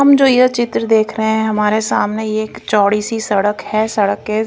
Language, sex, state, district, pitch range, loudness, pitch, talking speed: Hindi, female, Punjab, Kapurthala, 210-225 Hz, -15 LUFS, 220 Hz, 215 wpm